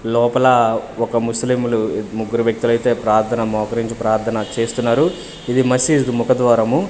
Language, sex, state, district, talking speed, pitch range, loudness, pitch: Telugu, male, Andhra Pradesh, Manyam, 105 wpm, 110-120 Hz, -17 LUFS, 115 Hz